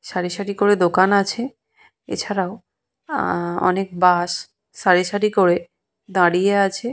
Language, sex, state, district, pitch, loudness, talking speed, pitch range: Bengali, female, West Bengal, Purulia, 190 Hz, -19 LUFS, 120 wpm, 180-205 Hz